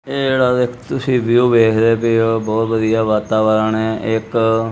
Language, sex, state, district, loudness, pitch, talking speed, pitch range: Punjabi, male, Punjab, Kapurthala, -16 LUFS, 115 Hz, 165 wpm, 110-120 Hz